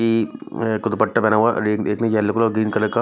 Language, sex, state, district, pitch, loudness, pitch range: Hindi, male, Maharashtra, Mumbai Suburban, 110 Hz, -20 LUFS, 110-115 Hz